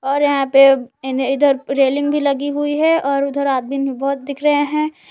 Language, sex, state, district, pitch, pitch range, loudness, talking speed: Hindi, female, Jharkhand, Palamu, 280 Hz, 270-290 Hz, -17 LUFS, 210 wpm